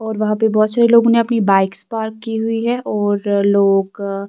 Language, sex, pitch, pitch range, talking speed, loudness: Urdu, female, 215 Hz, 200-225 Hz, 225 wpm, -16 LUFS